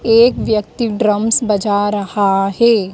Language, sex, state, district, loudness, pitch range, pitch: Hindi, female, Madhya Pradesh, Dhar, -15 LUFS, 205-230 Hz, 210 Hz